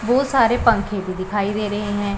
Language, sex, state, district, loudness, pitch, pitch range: Hindi, female, Punjab, Pathankot, -20 LUFS, 205 Hz, 200-230 Hz